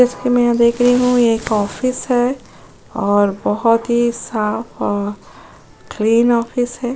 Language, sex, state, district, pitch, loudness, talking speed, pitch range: Hindi, female, Uttar Pradesh, Jyotiba Phule Nagar, 235 Hz, -16 LUFS, 165 wpm, 215-245 Hz